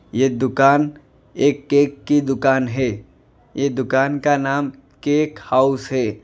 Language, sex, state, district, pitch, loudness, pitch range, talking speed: Hindi, male, Gujarat, Valsad, 135 Hz, -19 LUFS, 130-145 Hz, 135 wpm